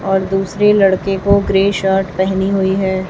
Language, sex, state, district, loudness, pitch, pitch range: Hindi, female, Chhattisgarh, Raipur, -14 LUFS, 195 Hz, 190-195 Hz